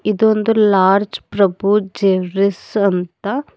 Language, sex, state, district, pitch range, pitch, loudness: Kannada, female, Karnataka, Bidar, 190-210 Hz, 200 Hz, -16 LUFS